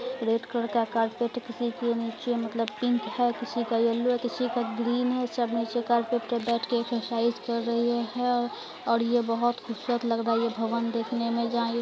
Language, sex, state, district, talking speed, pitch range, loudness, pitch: Hindi, female, Bihar, Araria, 225 wpm, 230-240 Hz, -28 LUFS, 235 Hz